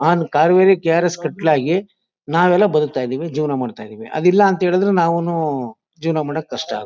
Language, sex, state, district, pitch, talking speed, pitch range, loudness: Kannada, male, Karnataka, Mysore, 165 Hz, 165 wpm, 150-180 Hz, -17 LUFS